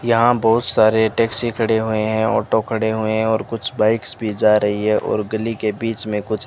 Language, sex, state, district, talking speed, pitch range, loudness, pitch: Hindi, male, Rajasthan, Bikaner, 230 wpm, 110-115 Hz, -18 LUFS, 110 Hz